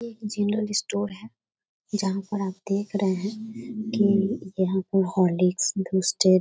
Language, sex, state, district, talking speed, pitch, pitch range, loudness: Hindi, female, Bihar, Darbhanga, 150 wpm, 195 Hz, 185-210 Hz, -25 LUFS